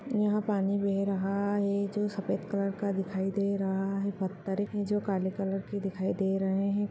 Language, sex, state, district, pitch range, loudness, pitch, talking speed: Hindi, female, Bihar, Bhagalpur, 195-205 Hz, -31 LUFS, 200 Hz, 200 wpm